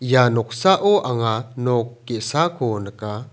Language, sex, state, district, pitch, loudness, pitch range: Garo, male, Meghalaya, South Garo Hills, 120 Hz, -20 LUFS, 115-130 Hz